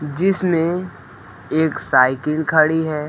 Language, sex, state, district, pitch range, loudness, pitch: Hindi, male, Bihar, Kaimur, 135-165 Hz, -18 LUFS, 155 Hz